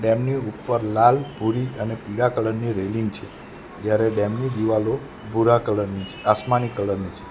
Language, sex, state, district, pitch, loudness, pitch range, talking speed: Gujarati, male, Gujarat, Valsad, 110 Hz, -22 LUFS, 105-115 Hz, 180 wpm